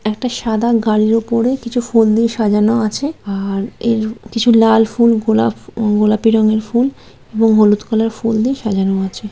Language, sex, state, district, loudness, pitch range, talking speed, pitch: Bengali, female, West Bengal, Malda, -15 LUFS, 215-230 Hz, 165 wpm, 220 Hz